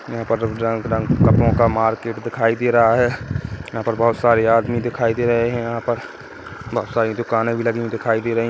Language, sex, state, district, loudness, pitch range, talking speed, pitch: Hindi, male, Chhattisgarh, Kabirdham, -19 LUFS, 115-120 Hz, 220 wpm, 115 Hz